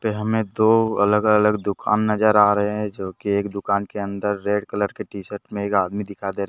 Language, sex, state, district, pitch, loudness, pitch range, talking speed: Hindi, male, Jharkhand, Deoghar, 105 Hz, -21 LUFS, 100-105 Hz, 250 wpm